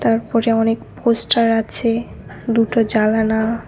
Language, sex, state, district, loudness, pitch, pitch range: Bengali, female, West Bengal, Cooch Behar, -17 LUFS, 230 Hz, 225-230 Hz